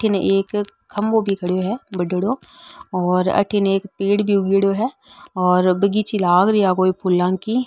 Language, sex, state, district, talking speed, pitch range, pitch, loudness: Marwari, female, Rajasthan, Nagaur, 170 wpm, 185-210 Hz, 195 Hz, -19 LUFS